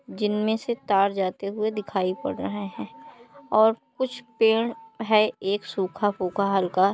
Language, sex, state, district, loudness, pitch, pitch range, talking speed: Hindi, male, Uttar Pradesh, Jalaun, -25 LUFS, 210 Hz, 195-225 Hz, 145 wpm